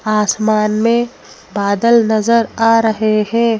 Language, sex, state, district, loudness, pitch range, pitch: Hindi, female, Madhya Pradesh, Bhopal, -14 LUFS, 215-230 Hz, 220 Hz